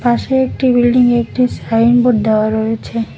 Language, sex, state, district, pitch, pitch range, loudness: Bengali, female, West Bengal, Cooch Behar, 240 Hz, 225-250 Hz, -13 LUFS